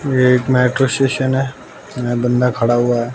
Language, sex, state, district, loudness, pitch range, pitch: Hindi, male, Bihar, West Champaran, -16 LUFS, 120-130 Hz, 125 Hz